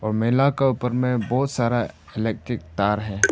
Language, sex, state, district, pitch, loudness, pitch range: Hindi, male, Arunachal Pradesh, Papum Pare, 120 Hz, -23 LUFS, 110-125 Hz